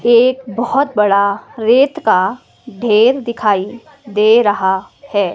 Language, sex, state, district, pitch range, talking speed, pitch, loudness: Hindi, female, Himachal Pradesh, Shimla, 205-245 Hz, 110 wpm, 225 Hz, -14 LUFS